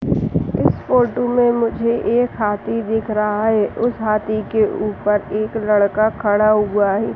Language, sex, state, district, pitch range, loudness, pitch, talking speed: Hindi, female, Uttar Pradesh, Hamirpur, 210-230 Hz, -18 LUFS, 215 Hz, 150 wpm